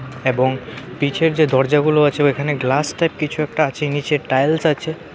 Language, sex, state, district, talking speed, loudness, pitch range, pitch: Bengali, male, Tripura, West Tripura, 175 wpm, -18 LUFS, 130-155 Hz, 145 Hz